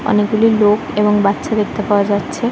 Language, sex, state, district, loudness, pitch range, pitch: Bengali, male, West Bengal, Kolkata, -15 LUFS, 205-215 Hz, 210 Hz